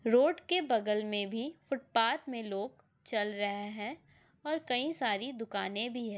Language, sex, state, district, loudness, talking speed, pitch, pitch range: Hindi, female, Andhra Pradesh, Anantapur, -33 LUFS, 175 wpm, 230 Hz, 210-270 Hz